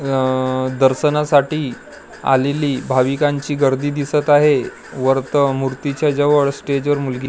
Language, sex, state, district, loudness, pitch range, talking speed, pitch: Marathi, male, Maharashtra, Gondia, -17 LUFS, 135-145 Hz, 100 wpm, 140 Hz